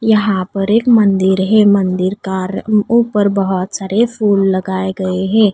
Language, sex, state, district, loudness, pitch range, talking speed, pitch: Hindi, female, Odisha, Nuapada, -14 LUFS, 190-215 Hz, 150 wpm, 195 Hz